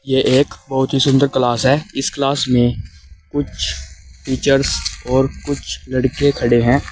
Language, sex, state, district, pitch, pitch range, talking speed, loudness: Hindi, male, Uttar Pradesh, Saharanpur, 130 Hz, 120-135 Hz, 145 wpm, -17 LUFS